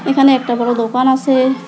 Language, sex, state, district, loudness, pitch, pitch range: Bengali, female, West Bengal, Alipurduar, -14 LUFS, 260 Hz, 240-270 Hz